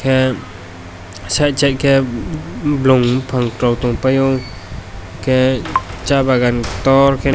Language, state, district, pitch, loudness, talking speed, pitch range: Kokborok, Tripura, West Tripura, 130 Hz, -15 LUFS, 115 wpm, 115-135 Hz